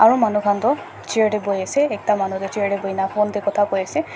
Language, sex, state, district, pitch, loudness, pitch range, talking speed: Nagamese, male, Nagaland, Dimapur, 205 Hz, -20 LUFS, 195-220 Hz, 300 wpm